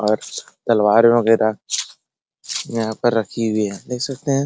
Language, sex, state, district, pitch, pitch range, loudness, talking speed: Hindi, male, Bihar, Araria, 115 Hz, 110-120 Hz, -19 LUFS, 160 wpm